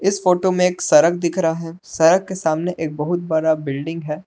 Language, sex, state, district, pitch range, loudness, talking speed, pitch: Hindi, male, Jharkhand, Palamu, 160-180 Hz, -18 LUFS, 225 wpm, 165 Hz